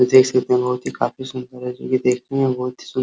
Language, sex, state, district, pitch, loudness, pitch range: Hindi, male, Uttar Pradesh, Hamirpur, 125 Hz, -20 LUFS, 125-130 Hz